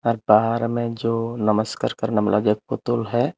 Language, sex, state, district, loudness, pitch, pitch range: Hindi, male, Tripura, Unakoti, -21 LUFS, 115 Hz, 105-115 Hz